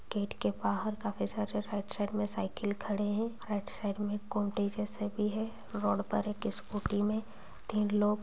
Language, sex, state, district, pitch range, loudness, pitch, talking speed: Hindi, male, Bihar, Purnia, 200-210 Hz, -34 LUFS, 205 Hz, 180 wpm